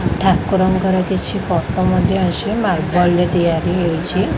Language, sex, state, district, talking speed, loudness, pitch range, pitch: Odia, female, Odisha, Khordha, 125 wpm, -16 LUFS, 175-190 Hz, 180 Hz